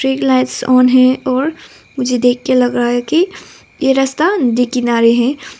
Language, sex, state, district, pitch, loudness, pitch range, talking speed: Hindi, female, Arunachal Pradesh, Papum Pare, 255 Hz, -13 LUFS, 245-270 Hz, 180 wpm